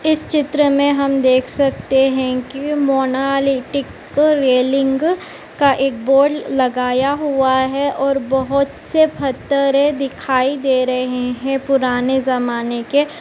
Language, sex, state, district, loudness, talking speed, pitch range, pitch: Hindi, female, Uttar Pradesh, Etah, -16 LUFS, 130 wpm, 260-280 Hz, 270 Hz